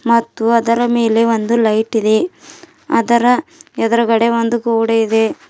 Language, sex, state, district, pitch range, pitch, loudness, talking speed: Kannada, female, Karnataka, Bidar, 225-240 Hz, 230 Hz, -14 LUFS, 100 wpm